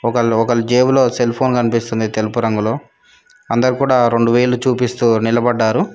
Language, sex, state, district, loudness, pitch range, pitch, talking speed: Telugu, female, Telangana, Mahabubabad, -15 LUFS, 115-125 Hz, 120 Hz, 130 wpm